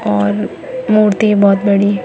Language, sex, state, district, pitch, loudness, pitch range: Hindi, female, Chhattisgarh, Bilaspur, 200 Hz, -13 LUFS, 195-215 Hz